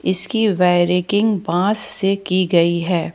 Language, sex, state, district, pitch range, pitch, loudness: Hindi, female, Jharkhand, Ranchi, 175-205 Hz, 185 Hz, -17 LUFS